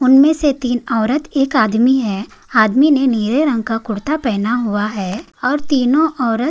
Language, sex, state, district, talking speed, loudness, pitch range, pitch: Hindi, female, Maharashtra, Chandrapur, 175 wpm, -16 LUFS, 220-280 Hz, 250 Hz